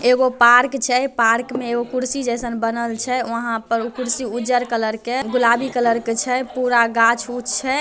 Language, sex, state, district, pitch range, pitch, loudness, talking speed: Maithili, male, Bihar, Samastipur, 230-250 Hz, 240 Hz, -19 LUFS, 175 wpm